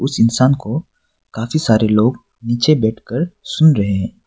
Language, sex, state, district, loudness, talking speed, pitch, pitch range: Hindi, male, Arunachal Pradesh, Papum Pare, -16 LUFS, 170 wpm, 120 Hz, 110-155 Hz